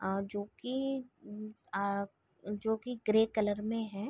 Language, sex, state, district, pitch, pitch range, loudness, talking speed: Hindi, female, Bihar, East Champaran, 215 Hz, 200-225 Hz, -35 LUFS, 145 wpm